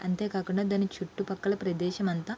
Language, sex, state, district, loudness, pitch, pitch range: Telugu, female, Andhra Pradesh, Srikakulam, -31 LUFS, 195 Hz, 185-200 Hz